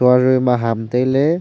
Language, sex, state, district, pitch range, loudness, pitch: Wancho, male, Arunachal Pradesh, Longding, 125-130 Hz, -16 LUFS, 125 Hz